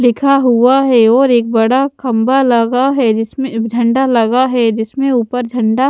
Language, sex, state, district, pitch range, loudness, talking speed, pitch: Hindi, female, Haryana, Charkhi Dadri, 230-265 Hz, -12 LUFS, 165 wpm, 245 Hz